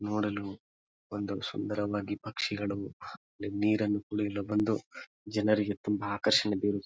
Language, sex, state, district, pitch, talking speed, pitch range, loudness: Kannada, male, Karnataka, Bijapur, 105 Hz, 105 wpm, 100-105 Hz, -32 LUFS